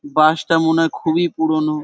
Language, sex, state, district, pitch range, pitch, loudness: Bengali, male, West Bengal, Paschim Medinipur, 155-165 Hz, 160 Hz, -17 LUFS